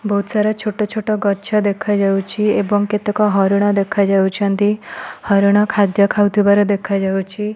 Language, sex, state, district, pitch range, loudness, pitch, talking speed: Odia, female, Odisha, Malkangiri, 200-210 Hz, -16 LUFS, 205 Hz, 125 wpm